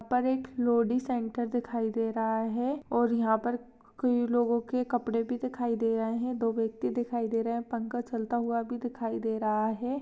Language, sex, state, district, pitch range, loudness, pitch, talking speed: Hindi, female, Maharashtra, Chandrapur, 225-245 Hz, -30 LUFS, 235 Hz, 210 wpm